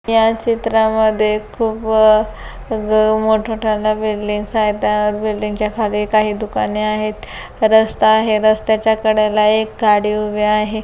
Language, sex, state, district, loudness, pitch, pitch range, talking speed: Marathi, female, Maharashtra, Solapur, -16 LUFS, 215 Hz, 210-220 Hz, 115 wpm